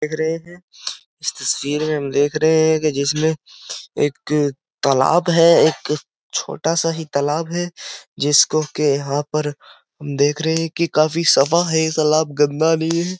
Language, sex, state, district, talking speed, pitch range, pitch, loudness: Hindi, male, Uttar Pradesh, Jyotiba Phule Nagar, 160 wpm, 145-165 Hz, 155 Hz, -18 LUFS